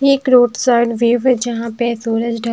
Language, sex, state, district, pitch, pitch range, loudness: Hindi, female, Himachal Pradesh, Shimla, 235 Hz, 230-250 Hz, -15 LUFS